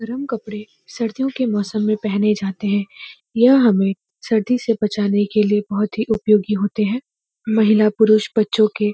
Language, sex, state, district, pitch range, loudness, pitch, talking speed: Hindi, female, Uttarakhand, Uttarkashi, 210-225 Hz, -18 LUFS, 215 Hz, 175 wpm